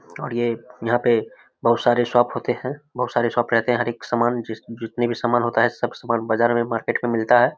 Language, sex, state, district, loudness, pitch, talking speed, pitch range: Hindi, male, Bihar, Samastipur, -21 LUFS, 120 Hz, 220 wpm, 115-120 Hz